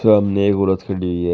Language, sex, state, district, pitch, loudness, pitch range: Hindi, male, Uttar Pradesh, Shamli, 100 Hz, -18 LUFS, 90-100 Hz